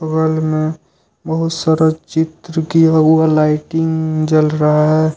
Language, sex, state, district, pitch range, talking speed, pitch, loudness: Hindi, male, Jharkhand, Ranchi, 155-160 Hz, 130 wpm, 160 Hz, -15 LUFS